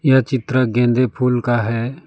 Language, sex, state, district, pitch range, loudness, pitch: Hindi, male, West Bengal, Alipurduar, 120-130 Hz, -17 LUFS, 125 Hz